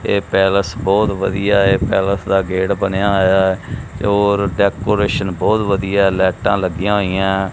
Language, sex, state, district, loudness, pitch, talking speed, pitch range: Punjabi, male, Punjab, Kapurthala, -16 LUFS, 100 Hz, 145 wpm, 95-100 Hz